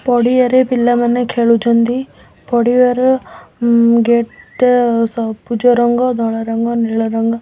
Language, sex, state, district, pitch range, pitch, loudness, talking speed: Odia, female, Odisha, Khordha, 230-250 Hz, 240 Hz, -14 LUFS, 75 wpm